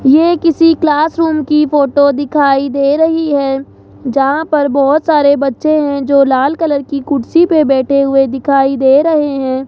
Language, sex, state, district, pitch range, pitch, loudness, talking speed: Hindi, male, Rajasthan, Jaipur, 275-310 Hz, 285 Hz, -11 LUFS, 180 wpm